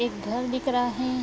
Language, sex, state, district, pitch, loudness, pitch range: Hindi, female, Bihar, Vaishali, 250 Hz, -27 LUFS, 240-255 Hz